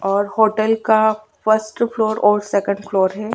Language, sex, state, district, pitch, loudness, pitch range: Hindi, female, Chhattisgarh, Sukma, 215 Hz, -18 LUFS, 200-220 Hz